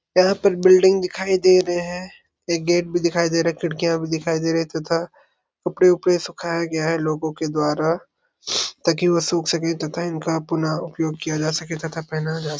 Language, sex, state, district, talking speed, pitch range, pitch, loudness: Hindi, male, Chhattisgarh, Sarguja, 205 wpm, 160-175 Hz, 170 Hz, -21 LUFS